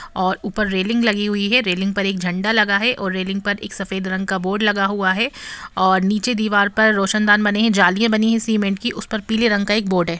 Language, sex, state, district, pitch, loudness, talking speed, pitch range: Hindi, female, Jharkhand, Sahebganj, 205 Hz, -18 LUFS, 220 wpm, 190-220 Hz